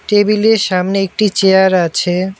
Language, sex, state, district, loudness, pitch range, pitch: Bengali, male, West Bengal, Alipurduar, -13 LUFS, 185-210 Hz, 195 Hz